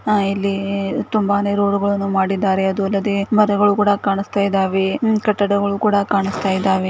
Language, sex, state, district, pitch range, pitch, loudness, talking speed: Kannada, female, Karnataka, Gulbarga, 195-205 Hz, 200 Hz, -18 LUFS, 140 wpm